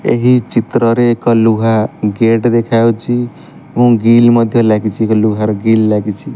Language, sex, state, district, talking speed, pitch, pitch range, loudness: Odia, male, Odisha, Malkangiri, 130 wpm, 115 Hz, 110-120 Hz, -12 LUFS